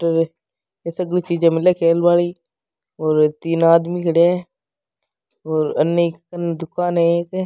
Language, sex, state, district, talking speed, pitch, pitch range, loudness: Rajasthani, male, Rajasthan, Nagaur, 135 wpm, 170 Hz, 165-175 Hz, -18 LUFS